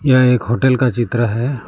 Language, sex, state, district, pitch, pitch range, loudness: Hindi, male, West Bengal, Alipurduar, 125 Hz, 120-130 Hz, -15 LUFS